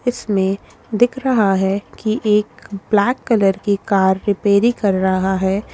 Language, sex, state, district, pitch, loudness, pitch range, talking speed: Hindi, female, Chhattisgarh, Korba, 205 Hz, -17 LUFS, 195-220 Hz, 145 wpm